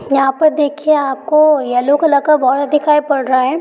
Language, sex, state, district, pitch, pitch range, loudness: Hindi, female, Bihar, Begusarai, 285 Hz, 270-300 Hz, -13 LUFS